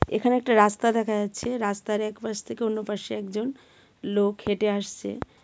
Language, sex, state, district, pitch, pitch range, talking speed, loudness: Bengali, female, Tripura, West Tripura, 210 Hz, 205-225 Hz, 165 wpm, -26 LUFS